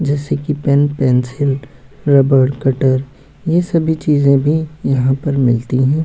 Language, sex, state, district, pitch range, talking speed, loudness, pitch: Hindi, male, Bihar, Muzaffarpur, 135-150 Hz, 150 wpm, -15 LUFS, 140 Hz